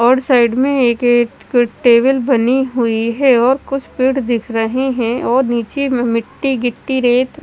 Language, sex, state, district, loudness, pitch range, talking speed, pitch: Hindi, female, Chandigarh, Chandigarh, -15 LUFS, 235-265 Hz, 185 wpm, 250 Hz